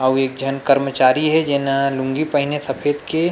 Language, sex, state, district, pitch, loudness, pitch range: Chhattisgarhi, male, Chhattisgarh, Rajnandgaon, 140 Hz, -18 LUFS, 135-145 Hz